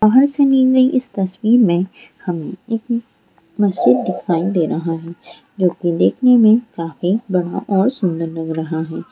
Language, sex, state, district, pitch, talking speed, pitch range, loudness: Hindi, female, Jharkhand, Sahebganj, 190 Hz, 160 wpm, 170-235 Hz, -17 LUFS